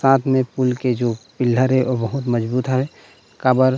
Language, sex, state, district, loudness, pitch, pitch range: Chhattisgarhi, male, Chhattisgarh, Rajnandgaon, -19 LUFS, 130 Hz, 120-130 Hz